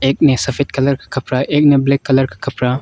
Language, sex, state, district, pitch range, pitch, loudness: Hindi, male, Arunachal Pradesh, Longding, 130-140 Hz, 135 Hz, -15 LUFS